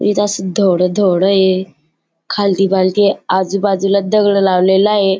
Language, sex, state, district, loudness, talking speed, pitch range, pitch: Marathi, female, Maharashtra, Dhule, -13 LUFS, 115 wpm, 190-200 Hz, 195 Hz